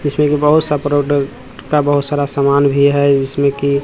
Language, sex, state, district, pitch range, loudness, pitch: Hindi, male, Bihar, Katihar, 140-145 Hz, -14 LUFS, 140 Hz